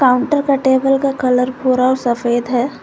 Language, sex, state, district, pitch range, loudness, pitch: Hindi, female, Jharkhand, Garhwa, 250-270 Hz, -15 LUFS, 255 Hz